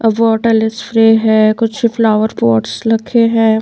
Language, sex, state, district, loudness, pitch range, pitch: Hindi, female, Bihar, Patna, -12 LUFS, 220-225 Hz, 225 Hz